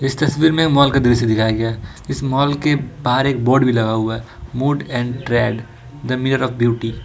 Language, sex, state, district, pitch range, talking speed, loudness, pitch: Hindi, male, Jharkhand, Ranchi, 115-140 Hz, 240 wpm, -17 LUFS, 125 Hz